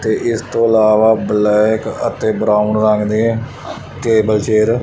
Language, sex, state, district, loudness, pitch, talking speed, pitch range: Punjabi, male, Punjab, Fazilka, -14 LUFS, 110 Hz, 150 wpm, 105-115 Hz